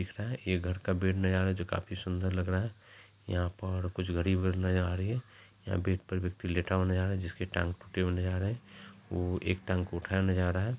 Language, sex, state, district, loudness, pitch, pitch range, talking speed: Maithili, male, Bihar, Supaul, -33 LUFS, 95 Hz, 90-95 Hz, 265 wpm